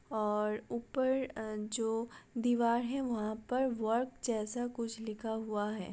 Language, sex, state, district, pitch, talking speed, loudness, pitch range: Hindi, female, Uttar Pradesh, Budaun, 225 Hz, 140 wpm, -35 LUFS, 215-245 Hz